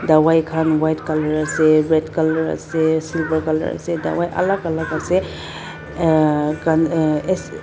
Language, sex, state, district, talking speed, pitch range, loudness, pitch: Nagamese, female, Nagaland, Dimapur, 140 wpm, 155-165 Hz, -18 LUFS, 160 Hz